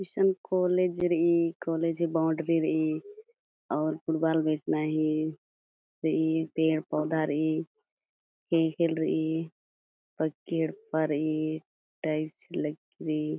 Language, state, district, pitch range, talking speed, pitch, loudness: Kurukh, Chhattisgarh, Jashpur, 155-165 Hz, 105 wpm, 160 Hz, -29 LUFS